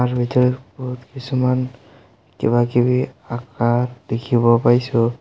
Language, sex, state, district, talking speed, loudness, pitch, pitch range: Assamese, male, Assam, Sonitpur, 90 wpm, -19 LUFS, 125 Hz, 120-125 Hz